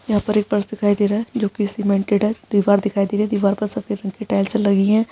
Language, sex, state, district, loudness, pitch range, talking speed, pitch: Hindi, female, Bihar, Kishanganj, -19 LUFS, 200-210 Hz, 295 wpm, 205 Hz